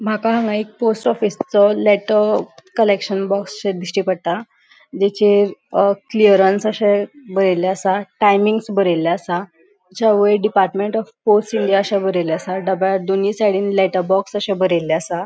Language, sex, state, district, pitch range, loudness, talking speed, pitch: Konkani, female, Goa, North and South Goa, 190-210 Hz, -17 LUFS, 140 wpm, 200 Hz